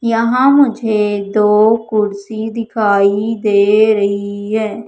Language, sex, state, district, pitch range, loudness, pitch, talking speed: Hindi, female, Madhya Pradesh, Umaria, 205-225 Hz, -14 LUFS, 215 Hz, 100 wpm